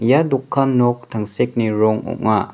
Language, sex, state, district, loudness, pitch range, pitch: Garo, male, Meghalaya, West Garo Hills, -18 LUFS, 110-130 Hz, 115 Hz